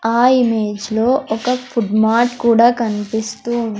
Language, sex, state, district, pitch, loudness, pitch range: Telugu, female, Andhra Pradesh, Sri Satya Sai, 230 Hz, -16 LUFS, 220-240 Hz